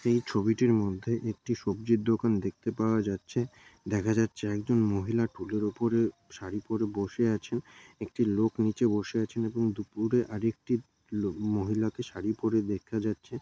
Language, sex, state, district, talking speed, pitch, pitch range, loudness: Bengali, male, West Bengal, Malda, 145 wpm, 110 Hz, 105-115 Hz, -30 LUFS